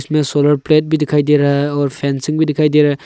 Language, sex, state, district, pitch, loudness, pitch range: Hindi, male, Arunachal Pradesh, Longding, 145 Hz, -14 LUFS, 145-150 Hz